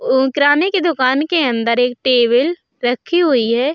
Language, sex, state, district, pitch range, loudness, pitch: Hindi, female, Uttar Pradesh, Budaun, 245-325 Hz, -15 LUFS, 265 Hz